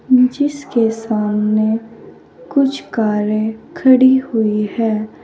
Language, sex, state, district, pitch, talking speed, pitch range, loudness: Hindi, female, Uttar Pradesh, Saharanpur, 225 Hz, 80 wpm, 215-260 Hz, -16 LUFS